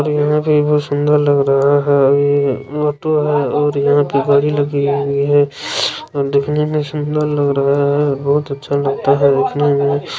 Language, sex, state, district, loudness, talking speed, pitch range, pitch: Maithili, male, Bihar, Darbhanga, -15 LUFS, 170 wpm, 140-150 Hz, 145 Hz